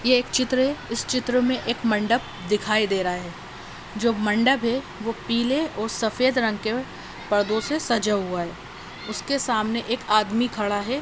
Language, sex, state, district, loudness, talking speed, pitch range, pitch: Hindi, female, Uttar Pradesh, Deoria, -23 LUFS, 180 wpm, 210-250 Hz, 230 Hz